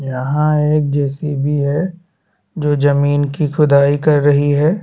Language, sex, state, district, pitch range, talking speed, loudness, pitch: Hindi, male, Chhattisgarh, Bastar, 145-150 Hz, 135 wpm, -15 LUFS, 145 Hz